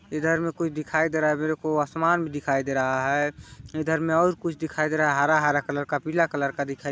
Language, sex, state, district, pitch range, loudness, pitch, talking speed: Hindi, male, Chhattisgarh, Balrampur, 145-160 Hz, -25 LUFS, 155 Hz, 275 wpm